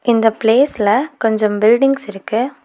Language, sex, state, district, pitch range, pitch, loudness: Tamil, female, Tamil Nadu, Nilgiris, 215-265 Hz, 225 Hz, -15 LUFS